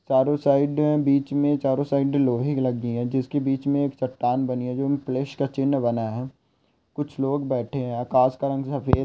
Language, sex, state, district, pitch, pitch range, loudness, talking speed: Hindi, male, Goa, North and South Goa, 135 Hz, 130-140 Hz, -24 LUFS, 205 wpm